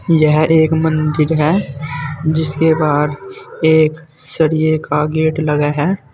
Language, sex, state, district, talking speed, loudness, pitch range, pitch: Hindi, male, Uttar Pradesh, Saharanpur, 115 wpm, -15 LUFS, 150-160 Hz, 155 Hz